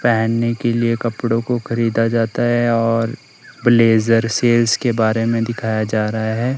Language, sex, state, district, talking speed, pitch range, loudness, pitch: Hindi, male, Himachal Pradesh, Shimla, 165 wpm, 115-120 Hz, -17 LUFS, 115 Hz